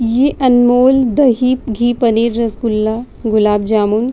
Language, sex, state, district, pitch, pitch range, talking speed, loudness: Hindi, female, Uttar Pradesh, Jyotiba Phule Nagar, 235 Hz, 220-250 Hz, 130 wpm, -13 LUFS